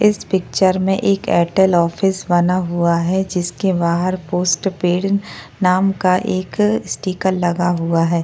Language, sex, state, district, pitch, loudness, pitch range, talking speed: Hindi, female, Maharashtra, Chandrapur, 185 Hz, -17 LUFS, 175-190 Hz, 145 wpm